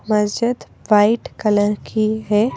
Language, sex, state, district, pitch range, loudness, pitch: Hindi, female, Madhya Pradesh, Bhopal, 210-220 Hz, -18 LUFS, 215 Hz